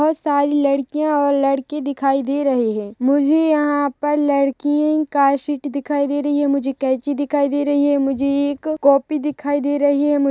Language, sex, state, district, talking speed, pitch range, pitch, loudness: Hindi, female, Chhattisgarh, Rajnandgaon, 180 wpm, 275-290 Hz, 285 Hz, -18 LUFS